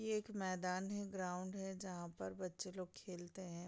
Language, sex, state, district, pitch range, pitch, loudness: Hindi, female, Bihar, Gopalganj, 180-190 Hz, 185 Hz, -46 LUFS